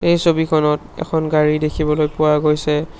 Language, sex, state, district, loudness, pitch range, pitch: Assamese, male, Assam, Sonitpur, -17 LUFS, 150-160 Hz, 155 Hz